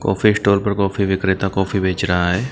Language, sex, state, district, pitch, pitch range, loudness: Hindi, male, Uttar Pradesh, Jyotiba Phule Nagar, 95 Hz, 95-100 Hz, -18 LUFS